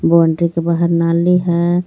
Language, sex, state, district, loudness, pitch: Hindi, female, Jharkhand, Garhwa, -14 LUFS, 170 Hz